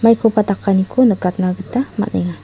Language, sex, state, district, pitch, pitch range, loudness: Garo, female, Meghalaya, South Garo Hills, 200 Hz, 185-230 Hz, -16 LUFS